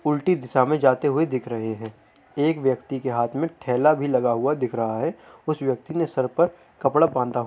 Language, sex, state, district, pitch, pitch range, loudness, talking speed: Hindi, male, Uttar Pradesh, Hamirpur, 135 Hz, 125-155 Hz, -23 LUFS, 225 wpm